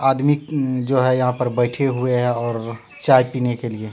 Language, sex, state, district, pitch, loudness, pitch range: Hindi, male, Bihar, Katihar, 125 Hz, -19 LUFS, 120-135 Hz